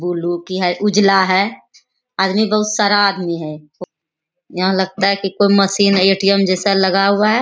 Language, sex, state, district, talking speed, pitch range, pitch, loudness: Hindi, female, Bihar, Bhagalpur, 195 wpm, 180-200 Hz, 195 Hz, -15 LUFS